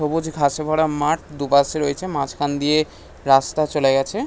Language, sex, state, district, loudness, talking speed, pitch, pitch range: Bengali, male, West Bengal, North 24 Parganas, -20 LUFS, 155 wpm, 145 Hz, 140-155 Hz